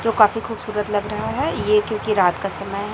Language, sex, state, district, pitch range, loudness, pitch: Hindi, male, Chhattisgarh, Raipur, 200-215 Hz, -21 LUFS, 210 Hz